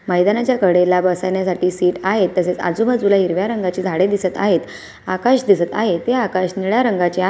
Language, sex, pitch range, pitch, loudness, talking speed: Marathi, female, 180-210 Hz, 185 Hz, -17 LUFS, 165 wpm